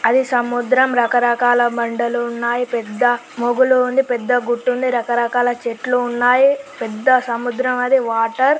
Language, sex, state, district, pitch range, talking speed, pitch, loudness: Telugu, male, Andhra Pradesh, Guntur, 240-255 Hz, 125 wpm, 245 Hz, -17 LUFS